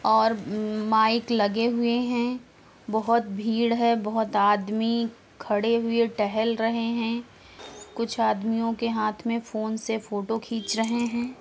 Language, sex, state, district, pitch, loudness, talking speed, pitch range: Hindi, female, Uttar Pradesh, Hamirpur, 225 Hz, -25 LUFS, 140 wpm, 220-235 Hz